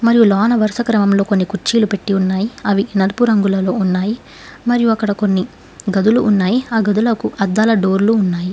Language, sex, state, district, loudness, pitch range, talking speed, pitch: Telugu, female, Telangana, Hyderabad, -15 LUFS, 195-225 Hz, 155 wpm, 205 Hz